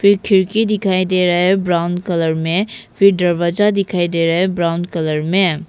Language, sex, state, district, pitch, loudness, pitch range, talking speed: Hindi, female, Arunachal Pradesh, Papum Pare, 180 Hz, -16 LUFS, 170-195 Hz, 190 wpm